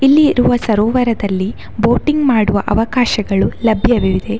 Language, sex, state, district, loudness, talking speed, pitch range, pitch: Kannada, female, Karnataka, Dakshina Kannada, -14 LUFS, 95 wpm, 205-245 Hz, 225 Hz